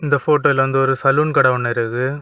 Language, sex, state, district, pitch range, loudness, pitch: Tamil, male, Tamil Nadu, Kanyakumari, 130-145 Hz, -16 LUFS, 135 Hz